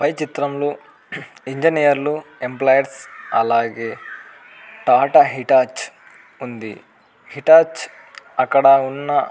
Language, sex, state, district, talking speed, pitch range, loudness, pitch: Telugu, male, Andhra Pradesh, Anantapur, 75 wpm, 125-145 Hz, -17 LUFS, 135 Hz